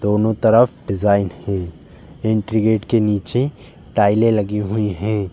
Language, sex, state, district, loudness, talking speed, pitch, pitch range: Hindi, male, Uttar Pradesh, Jalaun, -18 LUFS, 135 wpm, 105 Hz, 100-110 Hz